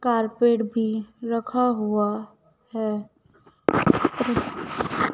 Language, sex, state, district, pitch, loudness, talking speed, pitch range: Hindi, female, Madhya Pradesh, Dhar, 220 Hz, -24 LUFS, 60 wpm, 210-235 Hz